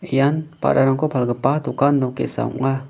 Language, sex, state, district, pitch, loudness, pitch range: Garo, male, Meghalaya, West Garo Hills, 135 Hz, -20 LUFS, 135-150 Hz